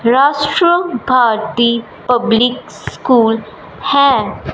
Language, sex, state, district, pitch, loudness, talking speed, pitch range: Hindi, male, Punjab, Fazilka, 245 Hz, -13 LUFS, 65 wpm, 230-280 Hz